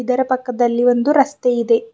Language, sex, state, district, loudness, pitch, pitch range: Kannada, female, Karnataka, Bidar, -16 LUFS, 255 Hz, 245-280 Hz